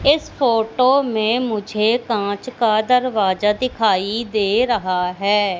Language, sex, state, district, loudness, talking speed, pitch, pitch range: Hindi, female, Madhya Pradesh, Katni, -18 LUFS, 120 wpm, 220 Hz, 205-250 Hz